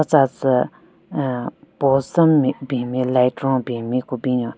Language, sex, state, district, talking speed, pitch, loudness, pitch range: Rengma, female, Nagaland, Kohima, 170 wpm, 130 Hz, -20 LUFS, 125-135 Hz